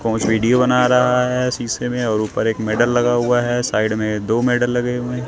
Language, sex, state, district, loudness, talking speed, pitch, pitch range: Hindi, male, Delhi, New Delhi, -17 LUFS, 225 wpm, 120 Hz, 110-125 Hz